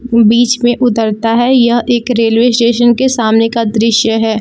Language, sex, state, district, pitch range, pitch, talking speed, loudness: Hindi, female, Jharkhand, Palamu, 225-240 Hz, 235 Hz, 175 wpm, -10 LUFS